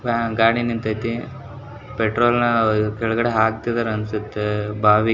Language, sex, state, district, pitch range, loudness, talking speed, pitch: Kannada, male, Karnataka, Shimoga, 110-120 Hz, -20 LUFS, 115 wpm, 115 Hz